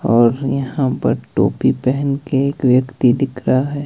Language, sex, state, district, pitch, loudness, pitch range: Hindi, male, Himachal Pradesh, Shimla, 135 Hz, -17 LUFS, 125-140 Hz